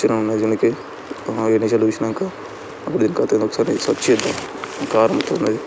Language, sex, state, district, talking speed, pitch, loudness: Telugu, male, Andhra Pradesh, Srikakulam, 170 wpm, 110 Hz, -19 LUFS